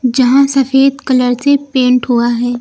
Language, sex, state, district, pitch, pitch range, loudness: Hindi, female, Uttar Pradesh, Lucknow, 255 Hz, 245-270 Hz, -11 LUFS